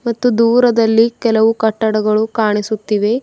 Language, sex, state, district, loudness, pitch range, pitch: Kannada, female, Karnataka, Bidar, -14 LUFS, 215-230 Hz, 220 Hz